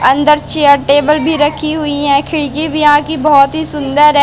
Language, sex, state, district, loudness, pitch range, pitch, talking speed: Hindi, female, Madhya Pradesh, Katni, -11 LUFS, 285-305 Hz, 295 Hz, 215 wpm